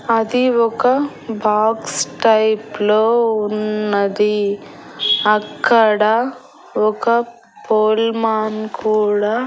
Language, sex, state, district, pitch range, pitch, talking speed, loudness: Telugu, female, Andhra Pradesh, Annamaya, 215-230 Hz, 220 Hz, 65 wpm, -16 LUFS